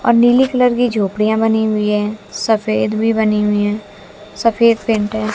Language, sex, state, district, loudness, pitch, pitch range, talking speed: Hindi, female, Haryana, Jhajjar, -15 LUFS, 215 Hz, 210-230 Hz, 180 wpm